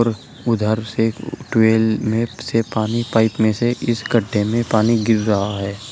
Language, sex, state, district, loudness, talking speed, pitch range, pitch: Hindi, male, Uttar Pradesh, Shamli, -19 LUFS, 160 wpm, 110-115 Hz, 110 Hz